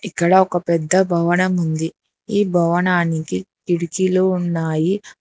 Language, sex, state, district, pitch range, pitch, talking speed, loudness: Telugu, female, Telangana, Hyderabad, 170-185 Hz, 175 Hz, 115 wpm, -18 LUFS